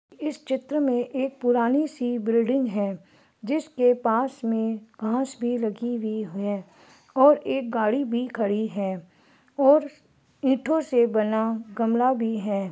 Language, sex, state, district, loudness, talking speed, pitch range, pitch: Hindi, female, Uttar Pradesh, Ghazipur, -24 LUFS, 135 wpm, 220-265 Hz, 240 Hz